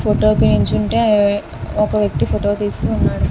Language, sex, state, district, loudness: Telugu, female, Andhra Pradesh, Visakhapatnam, -16 LUFS